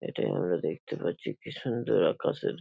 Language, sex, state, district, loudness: Bengali, male, West Bengal, Paschim Medinipur, -30 LUFS